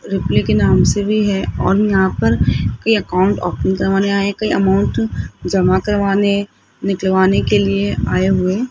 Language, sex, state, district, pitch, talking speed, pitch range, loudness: Hindi, female, Rajasthan, Jaipur, 190 Hz, 165 wpm, 180-200 Hz, -16 LUFS